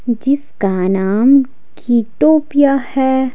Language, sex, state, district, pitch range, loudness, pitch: Hindi, female, Himachal Pradesh, Shimla, 225-275 Hz, -14 LUFS, 265 Hz